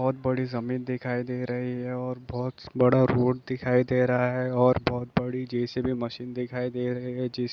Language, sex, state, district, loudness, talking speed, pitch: Hindi, male, Bihar, East Champaran, -27 LUFS, 190 wpm, 125 Hz